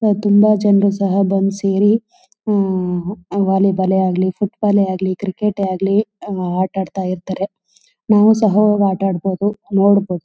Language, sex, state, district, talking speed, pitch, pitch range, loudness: Kannada, female, Karnataka, Chamarajanagar, 115 wpm, 195 Hz, 190-205 Hz, -16 LUFS